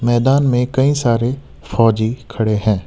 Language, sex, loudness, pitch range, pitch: Hindi, male, -16 LUFS, 110-130 Hz, 120 Hz